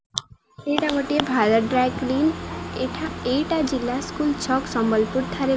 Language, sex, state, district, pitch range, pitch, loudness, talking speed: Odia, female, Odisha, Sambalpur, 255-290 Hz, 265 Hz, -23 LUFS, 140 wpm